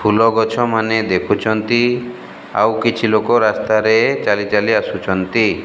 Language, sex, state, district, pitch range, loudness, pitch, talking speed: Odia, male, Odisha, Malkangiri, 110-115 Hz, -16 LUFS, 110 Hz, 95 wpm